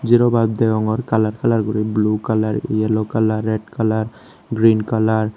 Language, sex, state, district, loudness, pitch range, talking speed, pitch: Chakma, male, Tripura, Unakoti, -18 LUFS, 110-115 Hz, 155 wpm, 110 Hz